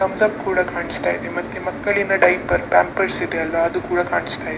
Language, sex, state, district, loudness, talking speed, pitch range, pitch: Kannada, female, Karnataka, Dakshina Kannada, -18 LUFS, 185 wpm, 170-200 Hz, 190 Hz